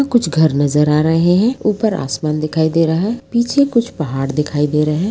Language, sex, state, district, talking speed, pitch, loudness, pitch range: Hindi, female, Bihar, Vaishali, 225 wpm, 160 Hz, -15 LUFS, 150-220 Hz